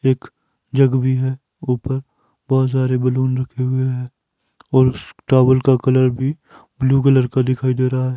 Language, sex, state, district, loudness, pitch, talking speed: Hindi, male, Himachal Pradesh, Shimla, -18 LUFS, 130 Hz, 170 wpm